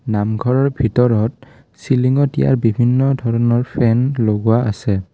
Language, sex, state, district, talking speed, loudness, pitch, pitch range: Assamese, male, Assam, Kamrup Metropolitan, 105 wpm, -16 LUFS, 120 Hz, 110-130 Hz